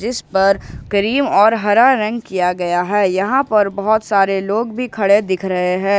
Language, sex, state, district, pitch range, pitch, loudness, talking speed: Hindi, male, Jharkhand, Ranchi, 195-220 Hz, 200 Hz, -16 LUFS, 190 wpm